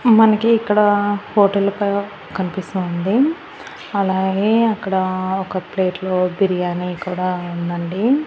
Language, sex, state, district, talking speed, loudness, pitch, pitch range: Telugu, female, Andhra Pradesh, Annamaya, 85 wpm, -18 LUFS, 195 Hz, 185-210 Hz